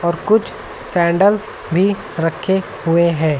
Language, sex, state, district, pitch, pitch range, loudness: Hindi, male, Uttar Pradesh, Lucknow, 175 Hz, 165-200 Hz, -17 LUFS